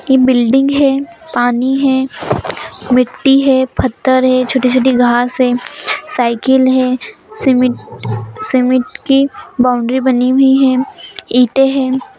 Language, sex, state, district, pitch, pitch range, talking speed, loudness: Hindi, female, Bihar, Madhepura, 260 Hz, 250-270 Hz, 120 wpm, -13 LUFS